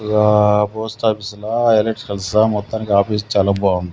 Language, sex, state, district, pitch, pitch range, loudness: Telugu, male, Andhra Pradesh, Sri Satya Sai, 105 Hz, 100-110 Hz, -17 LUFS